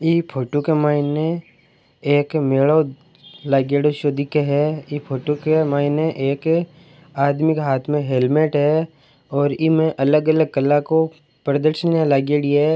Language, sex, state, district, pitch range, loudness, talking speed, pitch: Marwari, male, Rajasthan, Churu, 140-160 Hz, -19 LUFS, 140 wpm, 150 Hz